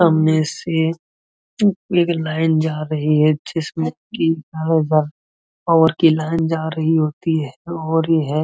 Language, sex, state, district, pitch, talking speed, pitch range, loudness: Hindi, male, Uttar Pradesh, Muzaffarnagar, 160 Hz, 140 wpm, 155-165 Hz, -18 LUFS